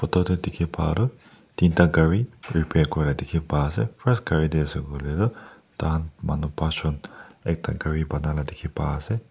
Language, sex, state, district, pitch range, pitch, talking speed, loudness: Nagamese, male, Nagaland, Dimapur, 75-95 Hz, 80 Hz, 180 wpm, -25 LUFS